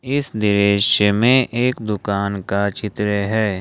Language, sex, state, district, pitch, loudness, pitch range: Hindi, male, Jharkhand, Ranchi, 105 Hz, -18 LUFS, 100-115 Hz